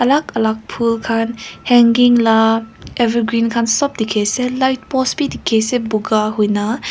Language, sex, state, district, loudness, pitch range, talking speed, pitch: Nagamese, female, Nagaland, Kohima, -15 LUFS, 220-245 Hz, 145 wpm, 230 Hz